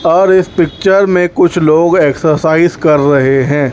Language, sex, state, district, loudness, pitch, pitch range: Hindi, male, Chhattisgarh, Raipur, -10 LUFS, 165 Hz, 145-180 Hz